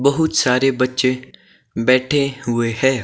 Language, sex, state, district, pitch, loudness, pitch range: Hindi, male, Himachal Pradesh, Shimla, 130 Hz, -17 LUFS, 125-140 Hz